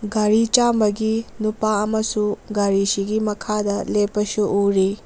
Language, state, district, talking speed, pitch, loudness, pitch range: Manipuri, Manipur, Imphal West, 95 wpm, 210 Hz, -20 LUFS, 205-215 Hz